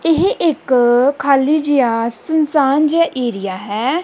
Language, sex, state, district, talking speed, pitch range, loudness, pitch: Punjabi, female, Punjab, Kapurthala, 120 wpm, 240-315 Hz, -15 LUFS, 275 Hz